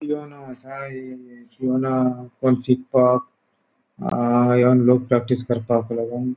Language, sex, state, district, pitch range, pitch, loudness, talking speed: Konkani, male, Goa, North and South Goa, 120-130 Hz, 125 Hz, -20 LUFS, 115 wpm